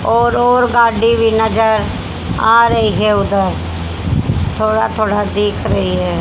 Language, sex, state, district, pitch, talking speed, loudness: Hindi, female, Haryana, Rohtak, 205 Hz, 135 wpm, -14 LUFS